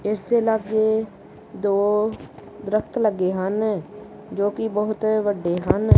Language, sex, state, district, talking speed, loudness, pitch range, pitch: Punjabi, male, Punjab, Kapurthala, 120 wpm, -22 LUFS, 200-220 Hz, 210 Hz